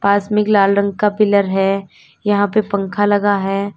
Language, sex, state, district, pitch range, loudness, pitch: Hindi, female, Uttar Pradesh, Lalitpur, 195-205 Hz, -16 LUFS, 200 Hz